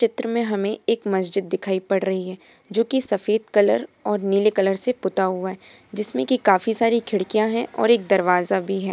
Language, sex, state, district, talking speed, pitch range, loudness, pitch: Hindi, female, Bihar, Purnia, 210 wpm, 190-225 Hz, -21 LUFS, 205 Hz